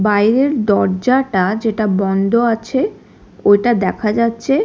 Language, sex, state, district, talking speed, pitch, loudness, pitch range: Bengali, female, Odisha, Khordha, 105 wpm, 220 Hz, -15 LUFS, 200-235 Hz